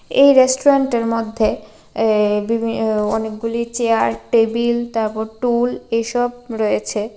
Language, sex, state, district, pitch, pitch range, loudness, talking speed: Bengali, female, Tripura, West Tripura, 230 Hz, 215-235 Hz, -18 LUFS, 110 wpm